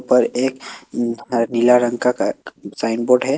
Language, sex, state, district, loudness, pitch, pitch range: Hindi, male, Assam, Kamrup Metropolitan, -19 LUFS, 120 Hz, 115-125 Hz